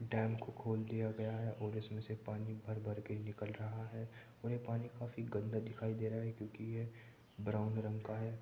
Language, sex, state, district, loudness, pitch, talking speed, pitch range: Hindi, male, Uttar Pradesh, Jyotiba Phule Nagar, -43 LUFS, 110 Hz, 215 wpm, 110-115 Hz